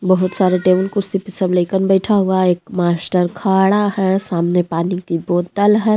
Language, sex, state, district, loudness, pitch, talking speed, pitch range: Hindi, female, Jharkhand, Deoghar, -16 LUFS, 185 Hz, 190 wpm, 180-195 Hz